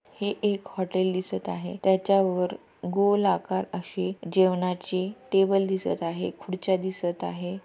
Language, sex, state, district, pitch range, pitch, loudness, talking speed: Marathi, female, Maharashtra, Pune, 180-195 Hz, 185 Hz, -27 LUFS, 125 wpm